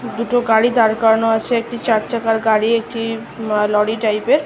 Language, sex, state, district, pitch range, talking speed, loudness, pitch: Bengali, female, West Bengal, North 24 Parganas, 220-235 Hz, 230 wpm, -17 LUFS, 225 Hz